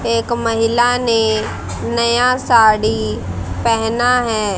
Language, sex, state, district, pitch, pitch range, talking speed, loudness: Hindi, female, Haryana, Rohtak, 230 Hz, 215-235 Hz, 90 wpm, -15 LUFS